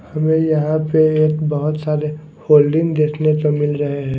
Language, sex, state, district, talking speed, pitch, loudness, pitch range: Hindi, male, Odisha, Nuapada, 170 wpm, 155 Hz, -16 LUFS, 150-155 Hz